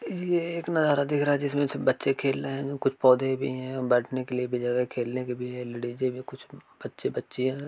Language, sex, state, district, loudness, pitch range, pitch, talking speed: Hindi, male, Uttar Pradesh, Varanasi, -27 LUFS, 125-140 Hz, 130 Hz, 250 wpm